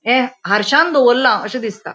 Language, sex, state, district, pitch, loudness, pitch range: Konkani, female, Goa, North and South Goa, 255 Hz, -14 LUFS, 220-255 Hz